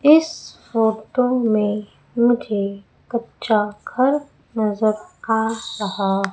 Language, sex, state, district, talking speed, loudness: Hindi, female, Madhya Pradesh, Umaria, 85 wpm, -21 LUFS